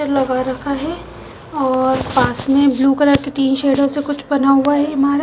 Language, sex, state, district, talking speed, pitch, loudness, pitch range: Hindi, female, Punjab, Fazilka, 195 wpm, 275 Hz, -16 LUFS, 270-290 Hz